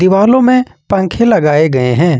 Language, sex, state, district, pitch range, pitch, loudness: Hindi, male, Jharkhand, Ranchi, 155-235 Hz, 190 Hz, -11 LUFS